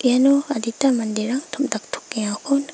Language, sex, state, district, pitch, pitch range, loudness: Garo, female, Meghalaya, West Garo Hills, 260 Hz, 225-280 Hz, -21 LUFS